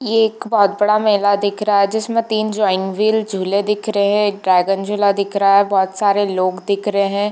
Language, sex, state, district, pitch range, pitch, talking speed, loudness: Hindi, female, Chhattisgarh, Bilaspur, 200-210 Hz, 205 Hz, 230 wpm, -16 LUFS